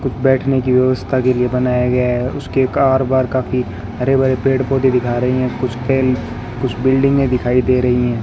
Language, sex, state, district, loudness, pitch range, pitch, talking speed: Hindi, male, Rajasthan, Bikaner, -16 LUFS, 125-130 Hz, 130 Hz, 205 wpm